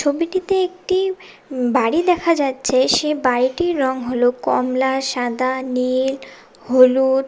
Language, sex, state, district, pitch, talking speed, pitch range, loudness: Bengali, female, West Bengal, Cooch Behar, 265 Hz, 105 wpm, 255-335 Hz, -18 LUFS